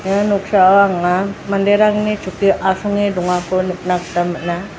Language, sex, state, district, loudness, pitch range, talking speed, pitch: Garo, female, Meghalaya, West Garo Hills, -16 LUFS, 180-200 Hz, 125 wpm, 190 Hz